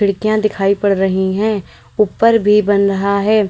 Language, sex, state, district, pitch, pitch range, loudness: Hindi, female, Uttar Pradesh, Lalitpur, 205 Hz, 195-215 Hz, -14 LUFS